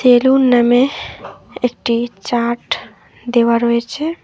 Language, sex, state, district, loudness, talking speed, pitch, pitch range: Bengali, female, West Bengal, Alipurduar, -15 LUFS, 85 wpm, 240 Hz, 235-255 Hz